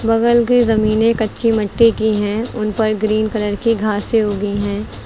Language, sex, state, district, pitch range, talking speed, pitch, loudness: Hindi, female, Uttar Pradesh, Lucknow, 210-230 Hz, 180 wpm, 220 Hz, -16 LUFS